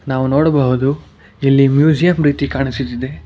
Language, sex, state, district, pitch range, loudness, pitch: Kannada, male, Karnataka, Bangalore, 130-145 Hz, -14 LUFS, 135 Hz